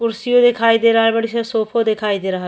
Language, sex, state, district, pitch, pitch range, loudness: Bhojpuri, female, Uttar Pradesh, Ghazipur, 225 Hz, 220-230 Hz, -16 LUFS